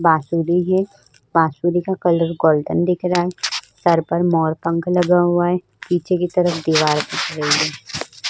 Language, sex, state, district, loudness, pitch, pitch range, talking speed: Hindi, female, Uttar Pradesh, Budaun, -18 LUFS, 175 Hz, 160-180 Hz, 165 wpm